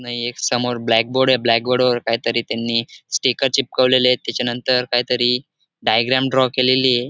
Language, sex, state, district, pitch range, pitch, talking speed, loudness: Marathi, male, Maharashtra, Dhule, 120-130 Hz, 125 Hz, 145 wpm, -18 LUFS